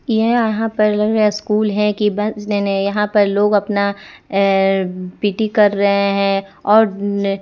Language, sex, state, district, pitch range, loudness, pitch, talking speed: Hindi, female, Bihar, Kaimur, 200-210 Hz, -16 LUFS, 205 Hz, 180 wpm